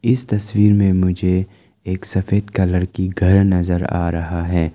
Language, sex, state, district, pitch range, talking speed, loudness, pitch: Hindi, male, Arunachal Pradesh, Lower Dibang Valley, 90-100 Hz, 165 wpm, -18 LUFS, 95 Hz